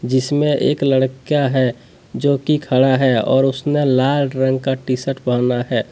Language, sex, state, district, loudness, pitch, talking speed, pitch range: Hindi, male, Jharkhand, Deoghar, -17 LUFS, 130 Hz, 170 wpm, 130-140 Hz